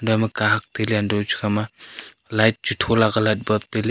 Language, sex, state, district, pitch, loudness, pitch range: Wancho, male, Arunachal Pradesh, Longding, 110 Hz, -20 LUFS, 105-110 Hz